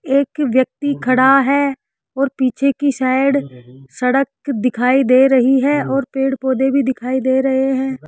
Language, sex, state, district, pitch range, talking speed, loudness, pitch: Hindi, male, Rajasthan, Jaipur, 260-275 Hz, 155 wpm, -16 LUFS, 265 Hz